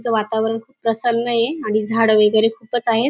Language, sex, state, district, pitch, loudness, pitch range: Marathi, female, Maharashtra, Dhule, 225 Hz, -18 LUFS, 220-235 Hz